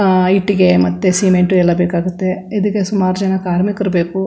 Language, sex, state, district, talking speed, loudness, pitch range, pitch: Kannada, female, Karnataka, Chamarajanagar, 155 wpm, -14 LUFS, 180-195 Hz, 185 Hz